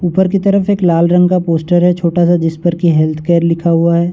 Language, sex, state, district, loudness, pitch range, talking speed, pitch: Hindi, male, Uttar Pradesh, Varanasi, -12 LUFS, 170-180 Hz, 260 wpm, 175 Hz